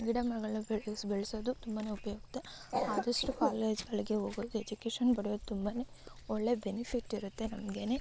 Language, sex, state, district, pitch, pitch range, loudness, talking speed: Kannada, female, Karnataka, Raichur, 220 Hz, 210-240 Hz, -36 LUFS, 105 wpm